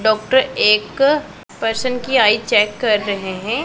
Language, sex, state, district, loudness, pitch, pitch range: Hindi, female, Punjab, Pathankot, -16 LUFS, 220 Hz, 210-260 Hz